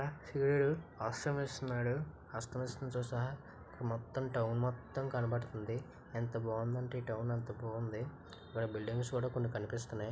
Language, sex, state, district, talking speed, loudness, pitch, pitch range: Telugu, female, Andhra Pradesh, Visakhapatnam, 115 wpm, -39 LUFS, 120 Hz, 115-130 Hz